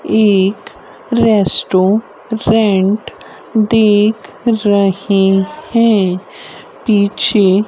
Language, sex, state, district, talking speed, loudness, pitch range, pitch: Hindi, female, Haryana, Rohtak, 45 wpm, -13 LUFS, 195-225 Hz, 210 Hz